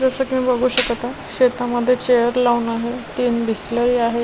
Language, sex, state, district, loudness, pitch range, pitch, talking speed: Marathi, female, Maharashtra, Washim, -18 LUFS, 235-250 Hz, 245 Hz, 170 wpm